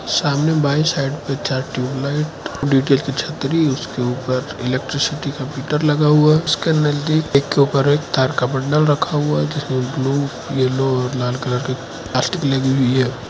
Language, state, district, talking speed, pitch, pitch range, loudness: Hindi, Arunachal Pradesh, Lower Dibang Valley, 180 wpm, 140 Hz, 130-150 Hz, -18 LUFS